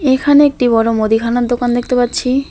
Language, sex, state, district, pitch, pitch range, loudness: Bengali, male, West Bengal, Alipurduar, 245 Hz, 235-265 Hz, -13 LUFS